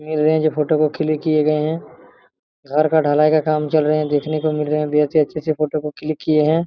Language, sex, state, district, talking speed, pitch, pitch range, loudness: Hindi, male, Bihar, Araria, 250 wpm, 155 Hz, 150-155 Hz, -18 LUFS